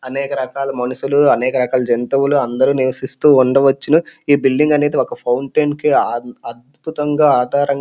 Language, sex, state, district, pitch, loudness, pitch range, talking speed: Telugu, male, Andhra Pradesh, Srikakulam, 135 Hz, -15 LUFS, 130-145 Hz, 140 wpm